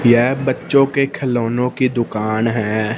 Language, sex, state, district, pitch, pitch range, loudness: Hindi, male, Punjab, Fazilka, 125 Hz, 115-130 Hz, -17 LUFS